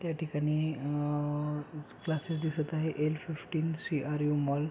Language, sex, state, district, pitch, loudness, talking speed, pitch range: Marathi, male, Maharashtra, Pune, 150 Hz, -33 LUFS, 165 wpm, 150-160 Hz